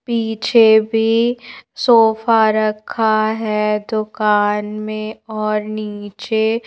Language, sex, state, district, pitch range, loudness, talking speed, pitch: Hindi, female, Madhya Pradesh, Bhopal, 215-225 Hz, -16 LUFS, 80 wpm, 220 Hz